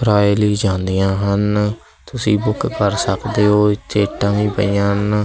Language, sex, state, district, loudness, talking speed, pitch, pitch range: Punjabi, male, Punjab, Kapurthala, -17 LUFS, 135 wpm, 105 Hz, 100-105 Hz